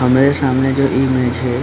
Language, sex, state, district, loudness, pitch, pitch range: Hindi, male, Bihar, Supaul, -15 LUFS, 130 Hz, 125-135 Hz